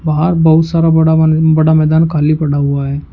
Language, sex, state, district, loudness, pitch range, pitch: Hindi, male, Uttar Pradesh, Shamli, -11 LUFS, 150-160 Hz, 160 Hz